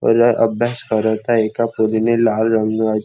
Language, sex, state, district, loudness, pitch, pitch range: Marathi, male, Maharashtra, Nagpur, -17 LUFS, 110 Hz, 110-115 Hz